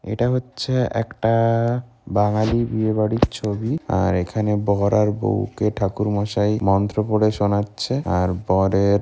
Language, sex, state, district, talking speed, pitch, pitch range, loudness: Bengali, male, West Bengal, Kolkata, 125 wpm, 105 Hz, 100-115 Hz, -21 LUFS